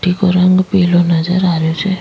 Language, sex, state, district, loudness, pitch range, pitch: Rajasthani, female, Rajasthan, Nagaur, -13 LUFS, 175-185 Hz, 180 Hz